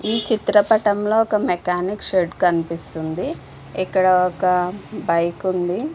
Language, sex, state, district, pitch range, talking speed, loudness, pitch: Telugu, female, Andhra Pradesh, Visakhapatnam, 175-210 Hz, 110 wpm, -20 LUFS, 185 Hz